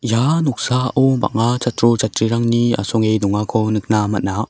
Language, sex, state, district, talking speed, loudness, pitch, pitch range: Garo, male, Meghalaya, South Garo Hills, 120 wpm, -17 LUFS, 115 Hz, 110-125 Hz